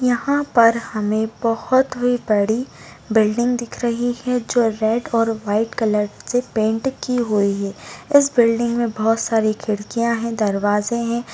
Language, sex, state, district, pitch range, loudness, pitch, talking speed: Hindi, female, Bihar, Begusarai, 215-245 Hz, -19 LUFS, 230 Hz, 155 wpm